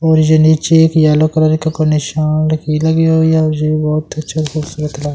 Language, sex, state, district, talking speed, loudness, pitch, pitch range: Hindi, male, Delhi, New Delhi, 175 wpm, -13 LUFS, 155 Hz, 155-160 Hz